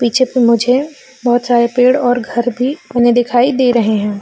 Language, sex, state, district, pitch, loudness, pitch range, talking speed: Hindi, female, Bihar, Jamui, 245 Hz, -13 LUFS, 240-255 Hz, 185 wpm